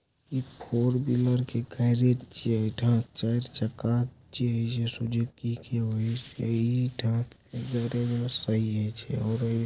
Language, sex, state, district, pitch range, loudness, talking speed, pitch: Angika, male, Bihar, Supaul, 115-125 Hz, -28 LUFS, 55 wpm, 120 Hz